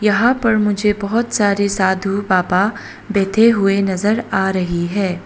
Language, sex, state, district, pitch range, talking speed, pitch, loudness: Hindi, female, Arunachal Pradesh, Papum Pare, 190-210 Hz, 150 wpm, 200 Hz, -16 LUFS